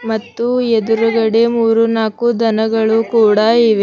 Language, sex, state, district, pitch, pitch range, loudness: Kannada, female, Karnataka, Bidar, 225 Hz, 220-230 Hz, -14 LUFS